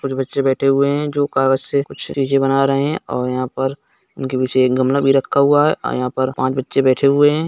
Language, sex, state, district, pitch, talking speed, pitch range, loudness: Hindi, male, Bihar, East Champaran, 135 Hz, 250 wpm, 130-140 Hz, -17 LUFS